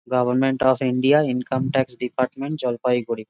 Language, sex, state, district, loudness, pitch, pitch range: Bengali, male, West Bengal, Jalpaiguri, -21 LUFS, 130 Hz, 125-135 Hz